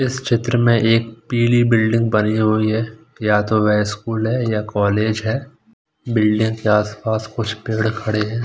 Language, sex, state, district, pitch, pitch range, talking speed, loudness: Hindi, male, Odisha, Khordha, 110 Hz, 110-120 Hz, 180 wpm, -18 LUFS